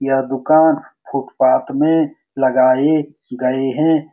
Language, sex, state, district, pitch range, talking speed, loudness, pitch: Hindi, male, Bihar, Saran, 130-155 Hz, 100 wpm, -16 LUFS, 145 Hz